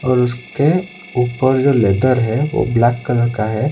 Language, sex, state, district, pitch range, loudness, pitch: Hindi, male, Odisha, Khordha, 120-140 Hz, -16 LUFS, 125 Hz